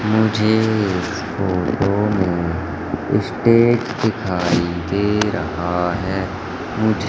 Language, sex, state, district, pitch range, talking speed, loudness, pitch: Hindi, male, Madhya Pradesh, Katni, 90-110 Hz, 85 wpm, -19 LUFS, 95 Hz